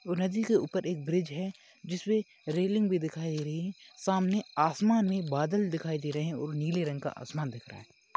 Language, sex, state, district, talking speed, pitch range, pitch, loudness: Hindi, male, Maharashtra, Chandrapur, 215 wpm, 150-190 Hz, 175 Hz, -31 LUFS